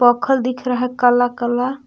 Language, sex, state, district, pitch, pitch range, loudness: Hindi, female, Jharkhand, Palamu, 250 Hz, 245-255 Hz, -17 LUFS